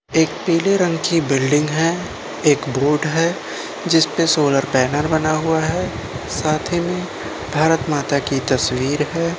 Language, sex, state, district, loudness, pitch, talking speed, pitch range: Hindi, male, Uttar Pradesh, Budaun, -18 LUFS, 155 Hz, 145 wpm, 145-165 Hz